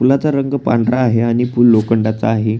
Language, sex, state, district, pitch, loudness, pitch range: Marathi, male, Maharashtra, Pune, 115 Hz, -14 LUFS, 110-130 Hz